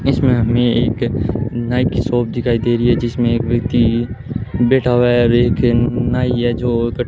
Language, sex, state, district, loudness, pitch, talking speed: Hindi, male, Rajasthan, Bikaner, -16 LUFS, 120 Hz, 195 wpm